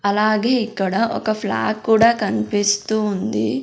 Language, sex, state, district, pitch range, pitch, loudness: Telugu, female, Andhra Pradesh, Sri Satya Sai, 205-230 Hz, 215 Hz, -19 LUFS